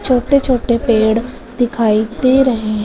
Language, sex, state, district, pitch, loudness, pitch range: Hindi, female, Punjab, Fazilka, 235 Hz, -14 LUFS, 220-255 Hz